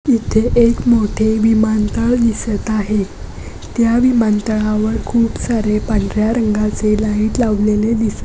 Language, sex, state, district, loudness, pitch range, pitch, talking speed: Marathi, female, Maharashtra, Pune, -15 LUFS, 215-230 Hz, 220 Hz, 140 wpm